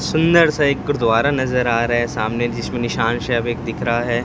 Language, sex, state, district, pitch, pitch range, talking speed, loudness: Hindi, male, Chhattisgarh, Raipur, 120 Hz, 115-140 Hz, 195 wpm, -18 LUFS